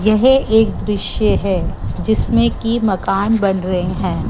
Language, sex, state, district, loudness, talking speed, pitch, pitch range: Hindi, female, Gujarat, Gandhinagar, -16 LUFS, 140 wpm, 190 Hz, 165-215 Hz